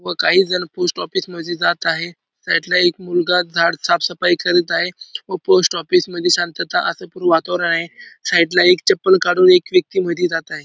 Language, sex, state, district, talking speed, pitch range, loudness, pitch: Marathi, male, Maharashtra, Dhule, 195 wpm, 170-185 Hz, -16 LUFS, 180 Hz